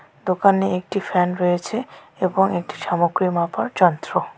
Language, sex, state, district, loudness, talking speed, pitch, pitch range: Bengali, female, West Bengal, Alipurduar, -20 LUFS, 125 wpm, 180 Hz, 175-195 Hz